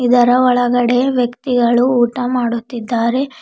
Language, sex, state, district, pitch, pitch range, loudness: Kannada, female, Karnataka, Bidar, 245 Hz, 240-250 Hz, -15 LUFS